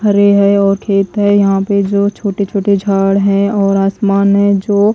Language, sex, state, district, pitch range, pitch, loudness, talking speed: Hindi, female, Haryana, Jhajjar, 195-205 Hz, 200 Hz, -12 LUFS, 180 wpm